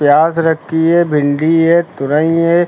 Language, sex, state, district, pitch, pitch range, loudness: Hindi, male, Uttar Pradesh, Lucknow, 165 Hz, 150-170 Hz, -13 LUFS